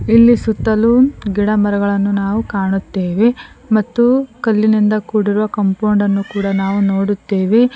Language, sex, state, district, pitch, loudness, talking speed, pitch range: Kannada, female, Karnataka, Koppal, 210 Hz, -15 LUFS, 110 wpm, 200-225 Hz